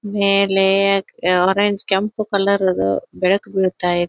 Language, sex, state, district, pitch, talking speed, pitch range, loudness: Kannada, female, Karnataka, Belgaum, 195 Hz, 115 wpm, 185-200 Hz, -17 LUFS